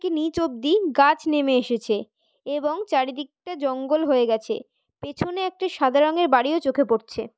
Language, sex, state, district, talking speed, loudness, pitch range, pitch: Bengali, female, West Bengal, Paschim Medinipur, 145 wpm, -22 LUFS, 260-330 Hz, 290 Hz